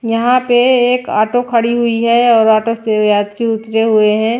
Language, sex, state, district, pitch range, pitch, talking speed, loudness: Hindi, female, Bihar, Patna, 220-240 Hz, 230 Hz, 190 wpm, -12 LUFS